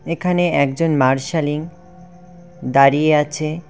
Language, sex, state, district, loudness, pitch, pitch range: Bengali, male, West Bengal, Cooch Behar, -17 LUFS, 160 Hz, 145-175 Hz